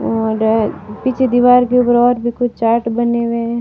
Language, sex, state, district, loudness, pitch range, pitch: Hindi, female, Rajasthan, Barmer, -14 LUFS, 225-245 Hz, 235 Hz